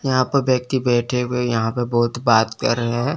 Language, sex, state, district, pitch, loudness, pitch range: Hindi, male, Chandigarh, Chandigarh, 125 Hz, -19 LUFS, 120-130 Hz